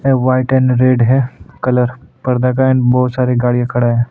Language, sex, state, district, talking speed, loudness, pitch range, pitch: Hindi, male, Goa, North and South Goa, 190 wpm, -14 LUFS, 125-130 Hz, 125 Hz